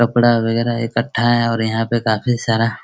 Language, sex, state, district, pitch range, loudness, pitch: Hindi, male, Bihar, Araria, 115-120 Hz, -17 LUFS, 115 Hz